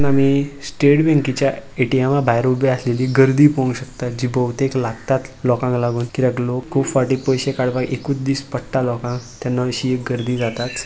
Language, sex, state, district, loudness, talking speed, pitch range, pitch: Konkani, male, Goa, North and South Goa, -19 LUFS, 160 wpm, 125-135 Hz, 130 Hz